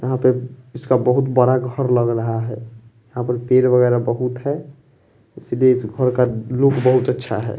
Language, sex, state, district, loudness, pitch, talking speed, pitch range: Hindi, male, Bihar, West Champaran, -18 LUFS, 125 Hz, 180 wpm, 115-130 Hz